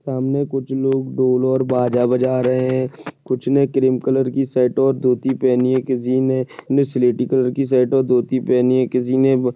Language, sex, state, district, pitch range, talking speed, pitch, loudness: Hindi, male, Maharashtra, Dhule, 125-135 Hz, 190 wpm, 130 Hz, -18 LUFS